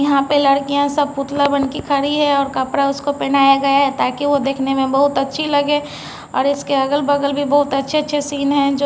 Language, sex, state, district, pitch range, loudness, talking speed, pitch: Hindi, female, Bihar, Patna, 275-285 Hz, -17 LUFS, 210 wpm, 280 Hz